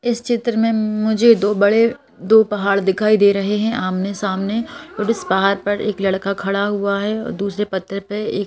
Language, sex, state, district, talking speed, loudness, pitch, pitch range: Hindi, female, Madhya Pradesh, Bhopal, 200 wpm, -18 LUFS, 205 Hz, 200-225 Hz